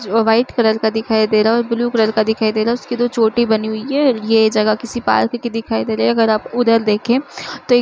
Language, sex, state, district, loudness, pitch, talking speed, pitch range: Hindi, female, Uttar Pradesh, Varanasi, -16 LUFS, 225 Hz, 285 wpm, 220-240 Hz